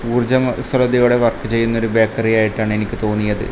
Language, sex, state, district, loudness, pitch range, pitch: Malayalam, male, Kerala, Kasaragod, -17 LUFS, 110-120 Hz, 115 Hz